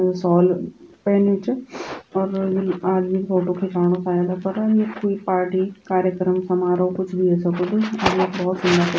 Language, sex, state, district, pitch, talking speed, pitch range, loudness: Garhwali, female, Uttarakhand, Tehri Garhwal, 185 Hz, 155 wpm, 180-195 Hz, -21 LUFS